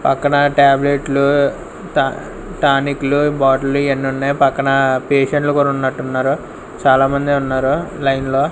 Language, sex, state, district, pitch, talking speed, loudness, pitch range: Telugu, male, Andhra Pradesh, Sri Satya Sai, 140 Hz, 115 wpm, -15 LUFS, 135-140 Hz